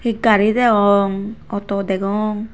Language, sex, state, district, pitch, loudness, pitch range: Chakma, female, Tripura, Unakoti, 210 Hz, -17 LUFS, 200-220 Hz